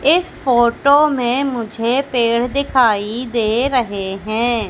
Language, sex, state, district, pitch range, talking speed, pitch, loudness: Hindi, female, Madhya Pradesh, Katni, 225-265 Hz, 115 wpm, 240 Hz, -16 LUFS